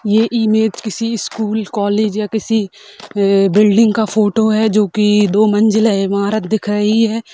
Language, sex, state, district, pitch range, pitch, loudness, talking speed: Hindi, female, Bihar, Sitamarhi, 210-220 Hz, 215 Hz, -14 LUFS, 170 wpm